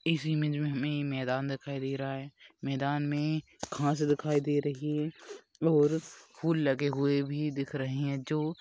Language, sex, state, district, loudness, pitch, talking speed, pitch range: Hindi, female, Uttar Pradesh, Etah, -31 LUFS, 145 Hz, 190 wpm, 140-150 Hz